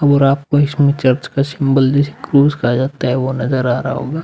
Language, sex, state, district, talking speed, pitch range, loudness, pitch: Hindi, male, Uttar Pradesh, Muzaffarnagar, 225 wpm, 130-145 Hz, -15 LUFS, 135 Hz